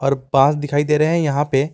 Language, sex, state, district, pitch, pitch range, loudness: Hindi, male, Jharkhand, Garhwa, 145 Hz, 135-150 Hz, -17 LUFS